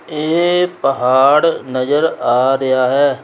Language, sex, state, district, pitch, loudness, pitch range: Punjabi, male, Punjab, Kapurthala, 140 Hz, -14 LUFS, 130-160 Hz